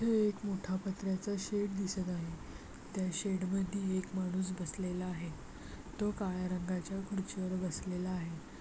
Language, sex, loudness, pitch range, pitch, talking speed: Marathi, female, -37 LUFS, 180-195 Hz, 185 Hz, 140 wpm